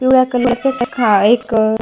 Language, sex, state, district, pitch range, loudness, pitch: Marathi, female, Maharashtra, Washim, 220-255 Hz, -14 LUFS, 240 Hz